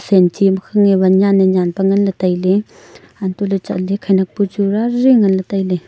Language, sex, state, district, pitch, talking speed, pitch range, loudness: Wancho, female, Arunachal Pradesh, Longding, 195 Hz, 185 wpm, 190-200 Hz, -15 LUFS